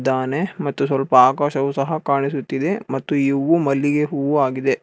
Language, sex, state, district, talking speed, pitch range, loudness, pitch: Kannada, male, Karnataka, Bangalore, 125 wpm, 135-145 Hz, -19 LUFS, 140 Hz